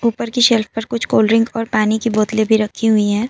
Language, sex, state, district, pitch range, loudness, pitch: Hindi, female, Assam, Kamrup Metropolitan, 215-230 Hz, -16 LUFS, 225 Hz